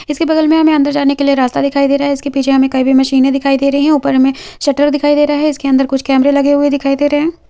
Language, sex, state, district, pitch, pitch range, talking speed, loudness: Hindi, female, Jharkhand, Jamtara, 280 Hz, 270-290 Hz, 265 wpm, -12 LUFS